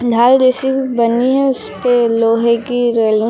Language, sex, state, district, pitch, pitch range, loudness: Hindi, female, Uttar Pradesh, Lucknow, 240 Hz, 230-255 Hz, -13 LUFS